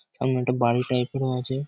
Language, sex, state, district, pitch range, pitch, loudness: Bengali, male, West Bengal, Kolkata, 125-130 Hz, 125 Hz, -25 LUFS